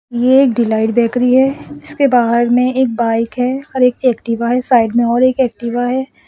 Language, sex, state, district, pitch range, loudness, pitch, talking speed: Hindi, male, Assam, Sonitpur, 235-260 Hz, -14 LUFS, 245 Hz, 190 wpm